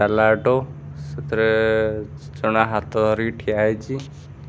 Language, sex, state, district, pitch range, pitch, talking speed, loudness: Odia, male, Odisha, Khordha, 110-130 Hz, 110 Hz, 105 wpm, -20 LUFS